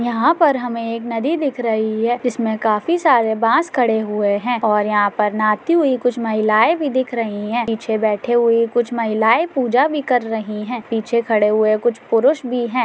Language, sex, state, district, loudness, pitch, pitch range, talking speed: Hindi, female, Bihar, Saran, -17 LUFS, 230 Hz, 220-245 Hz, 205 wpm